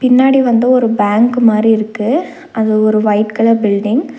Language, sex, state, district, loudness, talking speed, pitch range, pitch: Tamil, female, Tamil Nadu, Nilgiris, -12 LUFS, 170 wpm, 215-250 Hz, 225 Hz